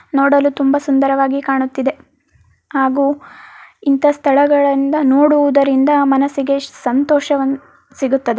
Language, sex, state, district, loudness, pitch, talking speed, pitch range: Kannada, female, Karnataka, Mysore, -14 LUFS, 275 Hz, 85 wpm, 270-285 Hz